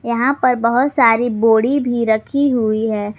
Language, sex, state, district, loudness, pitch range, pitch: Hindi, female, Jharkhand, Ranchi, -16 LUFS, 220-255 Hz, 235 Hz